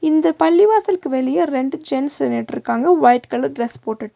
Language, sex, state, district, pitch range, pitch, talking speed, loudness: Tamil, female, Tamil Nadu, Nilgiris, 235-330 Hz, 270 Hz, 145 wpm, -17 LUFS